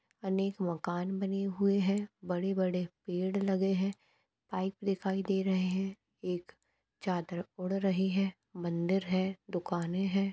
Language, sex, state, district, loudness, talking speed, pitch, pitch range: Hindi, female, Rajasthan, Nagaur, -34 LUFS, 145 wpm, 190 Hz, 180-195 Hz